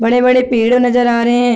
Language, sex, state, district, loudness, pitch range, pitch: Hindi, female, Bihar, Gopalganj, -12 LUFS, 235-245 Hz, 245 Hz